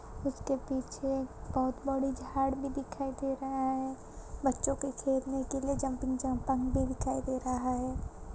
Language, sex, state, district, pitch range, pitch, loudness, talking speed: Hindi, female, Bihar, Kishanganj, 260-270 Hz, 265 Hz, -34 LUFS, 165 wpm